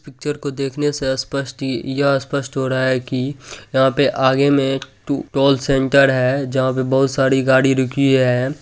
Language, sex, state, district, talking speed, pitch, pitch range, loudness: Hindi, male, Bihar, Supaul, 190 wpm, 135 Hz, 130-140 Hz, -18 LUFS